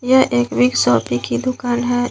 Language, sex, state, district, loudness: Hindi, female, Jharkhand, Garhwa, -17 LUFS